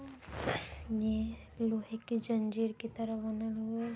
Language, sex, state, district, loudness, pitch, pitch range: Hindi, female, Uttar Pradesh, Varanasi, -36 LUFS, 225 Hz, 220-230 Hz